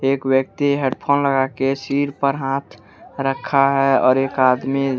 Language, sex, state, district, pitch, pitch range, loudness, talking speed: Hindi, male, Jharkhand, Deoghar, 135 Hz, 135-140 Hz, -18 LUFS, 170 wpm